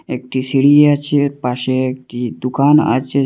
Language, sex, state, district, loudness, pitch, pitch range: Bengali, male, Assam, Hailakandi, -15 LUFS, 135 Hz, 130-145 Hz